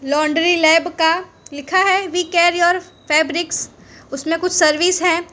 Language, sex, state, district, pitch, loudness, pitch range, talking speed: Hindi, female, Gujarat, Valsad, 340 Hz, -16 LUFS, 315-355 Hz, 145 wpm